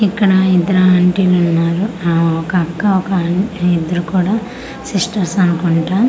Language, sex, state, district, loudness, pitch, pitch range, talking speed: Telugu, female, Andhra Pradesh, Manyam, -14 LUFS, 185 Hz, 175-195 Hz, 130 wpm